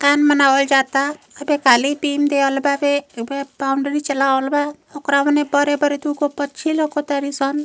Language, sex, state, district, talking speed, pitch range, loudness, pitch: Bhojpuri, female, Uttar Pradesh, Gorakhpur, 140 wpm, 275-290 Hz, -18 LUFS, 285 Hz